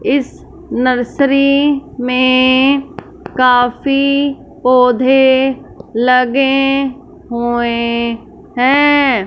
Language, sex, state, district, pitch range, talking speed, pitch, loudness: Hindi, female, Punjab, Fazilka, 250-275 Hz, 50 wpm, 260 Hz, -13 LUFS